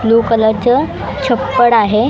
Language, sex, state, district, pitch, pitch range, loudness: Marathi, female, Maharashtra, Mumbai Suburban, 230 Hz, 220-245 Hz, -13 LUFS